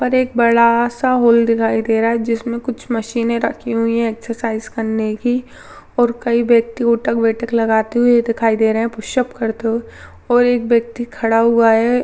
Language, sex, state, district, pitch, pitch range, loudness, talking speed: Hindi, female, Rajasthan, Churu, 235 Hz, 225-240 Hz, -16 LUFS, 190 wpm